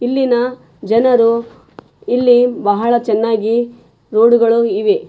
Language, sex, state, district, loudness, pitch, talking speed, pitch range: Kannada, female, Karnataka, Raichur, -14 LUFS, 235 Hz, 80 wpm, 230-245 Hz